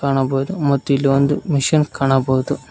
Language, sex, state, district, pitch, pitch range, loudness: Kannada, male, Karnataka, Koppal, 140 Hz, 135-145 Hz, -17 LUFS